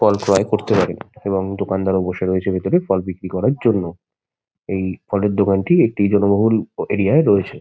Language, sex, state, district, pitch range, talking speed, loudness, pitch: Bengali, male, West Bengal, Kolkata, 95-105 Hz, 175 wpm, -18 LUFS, 100 Hz